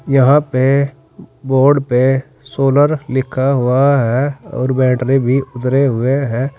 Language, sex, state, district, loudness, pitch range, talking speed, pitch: Hindi, male, Uttar Pradesh, Saharanpur, -14 LUFS, 130-140 Hz, 125 wpm, 135 Hz